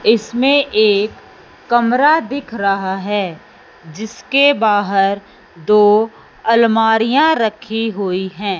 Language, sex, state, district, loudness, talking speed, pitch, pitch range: Hindi, male, Punjab, Fazilka, -15 LUFS, 90 wpm, 220 Hz, 200-240 Hz